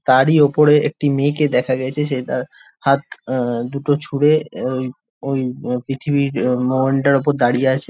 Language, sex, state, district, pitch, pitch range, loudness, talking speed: Bengali, male, West Bengal, Jhargram, 135 Hz, 130-145 Hz, -18 LUFS, 150 wpm